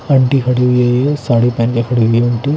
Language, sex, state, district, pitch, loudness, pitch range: Hindi, male, Odisha, Khordha, 125 Hz, -13 LUFS, 120-135 Hz